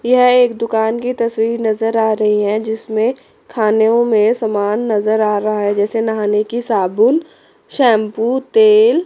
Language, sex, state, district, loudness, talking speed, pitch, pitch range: Hindi, female, Chandigarh, Chandigarh, -15 LUFS, 150 wpm, 225 Hz, 215-240 Hz